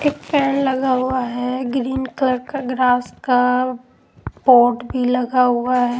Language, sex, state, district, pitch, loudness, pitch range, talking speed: Hindi, female, Punjab, Pathankot, 255 Hz, -18 LUFS, 250-260 Hz, 160 wpm